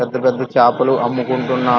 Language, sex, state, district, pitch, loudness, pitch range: Telugu, male, Andhra Pradesh, Krishna, 125 Hz, -16 LUFS, 120-130 Hz